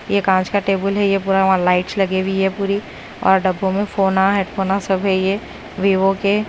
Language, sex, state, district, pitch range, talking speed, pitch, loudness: Hindi, female, Punjab, Kapurthala, 190-200 Hz, 220 wpm, 195 Hz, -18 LUFS